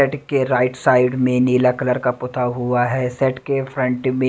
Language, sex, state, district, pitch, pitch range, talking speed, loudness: Hindi, male, Delhi, New Delhi, 125 Hz, 125-130 Hz, 210 wpm, -18 LUFS